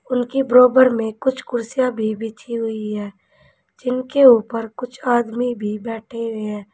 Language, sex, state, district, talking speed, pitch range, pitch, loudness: Hindi, female, Uttar Pradesh, Saharanpur, 150 wpm, 220-250 Hz, 235 Hz, -19 LUFS